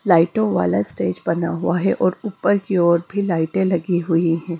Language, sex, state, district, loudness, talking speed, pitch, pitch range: Hindi, female, Punjab, Kapurthala, -19 LUFS, 195 wpm, 170 Hz, 165-190 Hz